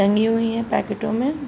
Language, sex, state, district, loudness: Hindi, female, Uttar Pradesh, Jalaun, -21 LUFS